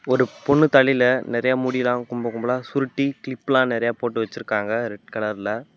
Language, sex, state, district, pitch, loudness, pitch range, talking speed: Tamil, male, Tamil Nadu, Namakkal, 125 Hz, -22 LUFS, 115-130 Hz, 165 wpm